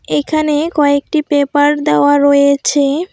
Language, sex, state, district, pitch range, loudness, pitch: Bengali, female, West Bengal, Alipurduar, 280-300 Hz, -12 LUFS, 290 Hz